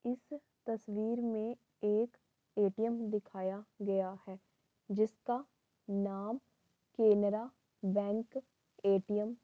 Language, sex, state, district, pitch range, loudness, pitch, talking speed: Hindi, female, Uttar Pradesh, Varanasi, 200-230 Hz, -36 LUFS, 210 Hz, 90 wpm